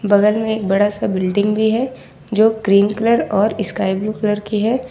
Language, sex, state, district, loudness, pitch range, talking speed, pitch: Hindi, female, Jharkhand, Ranchi, -17 LUFS, 205-220 Hz, 210 wpm, 210 Hz